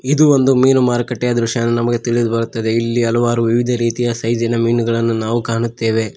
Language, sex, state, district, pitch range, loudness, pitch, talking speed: Kannada, male, Karnataka, Koppal, 115-120 Hz, -16 LUFS, 120 Hz, 155 wpm